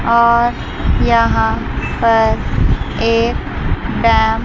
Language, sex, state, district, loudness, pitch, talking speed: Hindi, female, Chandigarh, Chandigarh, -15 LUFS, 220 Hz, 80 wpm